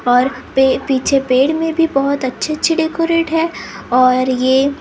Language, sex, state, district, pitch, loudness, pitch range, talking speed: Hindi, male, Maharashtra, Gondia, 275 Hz, -15 LUFS, 255-325 Hz, 160 wpm